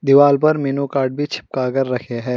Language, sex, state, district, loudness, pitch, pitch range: Hindi, male, Telangana, Hyderabad, -18 LUFS, 135 Hz, 130-145 Hz